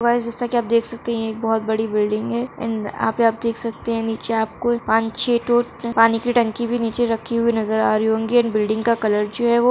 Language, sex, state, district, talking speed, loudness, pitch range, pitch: Hindi, female, Andhra Pradesh, Krishna, 245 wpm, -20 LUFS, 220-235 Hz, 230 Hz